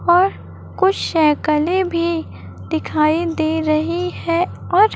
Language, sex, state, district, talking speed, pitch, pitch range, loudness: Hindi, female, Chhattisgarh, Raipur, 110 wpm, 335 Hz, 315-360 Hz, -18 LUFS